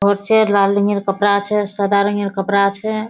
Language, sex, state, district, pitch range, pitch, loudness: Hindi, female, Bihar, Kishanganj, 200-205 Hz, 200 Hz, -16 LUFS